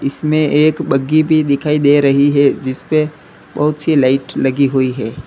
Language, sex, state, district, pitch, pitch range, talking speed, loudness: Hindi, male, Uttar Pradesh, Lalitpur, 145 Hz, 135-155 Hz, 135 wpm, -14 LUFS